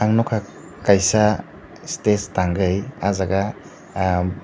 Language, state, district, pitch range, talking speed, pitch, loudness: Kokborok, Tripura, Dhalai, 95-105 Hz, 65 wpm, 100 Hz, -20 LUFS